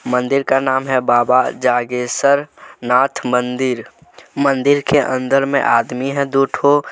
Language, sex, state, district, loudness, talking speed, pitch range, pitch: Hindi, male, Jharkhand, Deoghar, -16 LUFS, 140 wpm, 125-140 Hz, 130 Hz